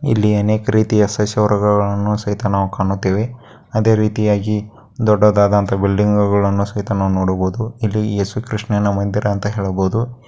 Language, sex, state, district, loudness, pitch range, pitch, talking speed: Kannada, male, Karnataka, Dakshina Kannada, -17 LUFS, 100-110 Hz, 105 Hz, 115 wpm